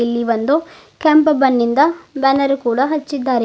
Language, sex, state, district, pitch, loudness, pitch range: Kannada, female, Karnataka, Bidar, 275 Hz, -16 LUFS, 245-305 Hz